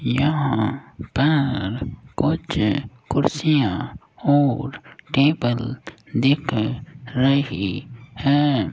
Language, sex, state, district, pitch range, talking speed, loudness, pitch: Hindi, male, Rajasthan, Jaipur, 120-145 Hz, 60 wpm, -21 LUFS, 135 Hz